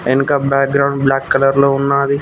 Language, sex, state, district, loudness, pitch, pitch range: Telugu, male, Telangana, Mahabubabad, -14 LUFS, 140 Hz, 135-140 Hz